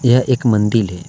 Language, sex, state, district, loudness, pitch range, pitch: Hindi, male, Jharkhand, Deoghar, -15 LUFS, 105-125 Hz, 115 Hz